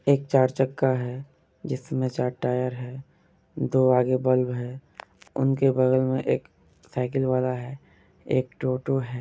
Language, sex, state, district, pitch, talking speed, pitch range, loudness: Hindi, male, Bihar, Kishanganj, 130 Hz, 145 wpm, 125-135 Hz, -25 LUFS